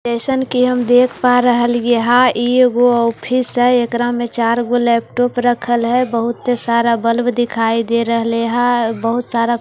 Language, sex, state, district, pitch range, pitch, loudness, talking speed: Hindi, female, Bihar, Katihar, 235-245 Hz, 240 Hz, -15 LUFS, 195 wpm